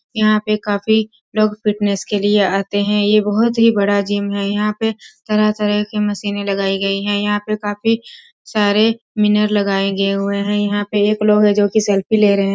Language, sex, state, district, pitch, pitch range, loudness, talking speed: Hindi, female, Bihar, Sitamarhi, 210 Hz, 205-215 Hz, -16 LUFS, 205 wpm